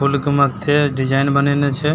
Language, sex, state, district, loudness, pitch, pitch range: Maithili, male, Bihar, Begusarai, -16 LUFS, 140 Hz, 140-145 Hz